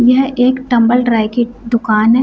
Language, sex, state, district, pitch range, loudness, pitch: Hindi, female, Bihar, Gopalganj, 230-250 Hz, -13 LUFS, 240 Hz